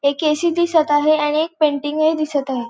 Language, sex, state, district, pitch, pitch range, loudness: Marathi, female, Goa, North and South Goa, 305 Hz, 290-315 Hz, -18 LUFS